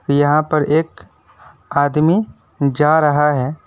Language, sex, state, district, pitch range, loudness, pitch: Hindi, male, West Bengal, Alipurduar, 145-155 Hz, -15 LUFS, 150 Hz